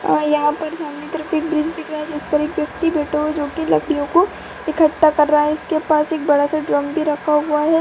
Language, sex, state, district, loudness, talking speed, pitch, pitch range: Hindi, female, Bihar, Purnia, -18 LUFS, 270 wpm, 305 Hz, 300-320 Hz